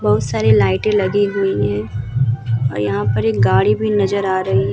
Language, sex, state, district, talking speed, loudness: Hindi, female, Bihar, Vaishali, 215 wpm, -17 LUFS